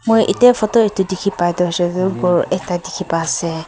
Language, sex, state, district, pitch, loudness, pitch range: Nagamese, female, Nagaland, Kohima, 185 Hz, -16 LUFS, 175-200 Hz